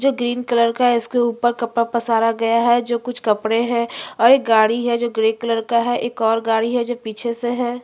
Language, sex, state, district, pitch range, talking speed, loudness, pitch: Hindi, female, Chhattisgarh, Bastar, 230-240 Hz, 255 wpm, -18 LUFS, 235 Hz